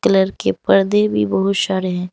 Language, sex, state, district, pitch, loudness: Hindi, female, Jharkhand, Garhwa, 170 Hz, -17 LUFS